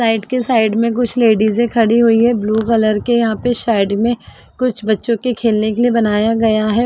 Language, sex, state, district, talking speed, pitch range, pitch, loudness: Hindi, female, Uttar Pradesh, Varanasi, 225 wpm, 215-240 Hz, 230 Hz, -15 LUFS